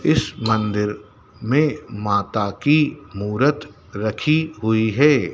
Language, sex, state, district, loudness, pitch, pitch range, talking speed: Hindi, male, Madhya Pradesh, Dhar, -20 LUFS, 110 Hz, 105-145 Hz, 100 wpm